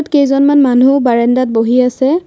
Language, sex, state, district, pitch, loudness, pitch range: Assamese, female, Assam, Kamrup Metropolitan, 260 Hz, -11 LUFS, 245-285 Hz